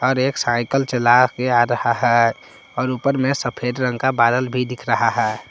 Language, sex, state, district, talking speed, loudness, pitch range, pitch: Hindi, male, Jharkhand, Palamu, 205 wpm, -18 LUFS, 120-130 Hz, 125 Hz